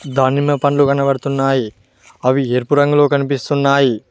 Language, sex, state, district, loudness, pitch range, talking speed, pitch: Telugu, male, Telangana, Mahabubabad, -15 LUFS, 130-145 Hz, 100 wpm, 140 Hz